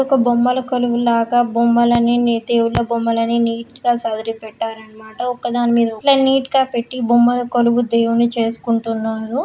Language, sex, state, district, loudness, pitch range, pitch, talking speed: Telugu, female, Telangana, Karimnagar, -17 LUFS, 230-245 Hz, 235 Hz, 145 wpm